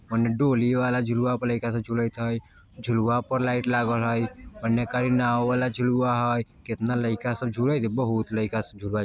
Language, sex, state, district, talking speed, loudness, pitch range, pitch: Bajjika, male, Bihar, Vaishali, 200 wpm, -25 LUFS, 115-125 Hz, 120 Hz